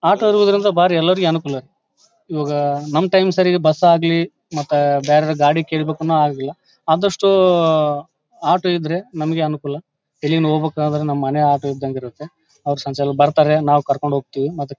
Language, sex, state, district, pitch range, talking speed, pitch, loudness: Kannada, male, Karnataka, Bellary, 145-170 Hz, 130 wpm, 155 Hz, -17 LUFS